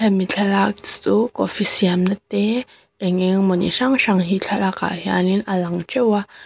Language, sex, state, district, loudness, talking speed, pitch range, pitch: Mizo, female, Mizoram, Aizawl, -19 LUFS, 175 wpm, 185-210 Hz, 195 Hz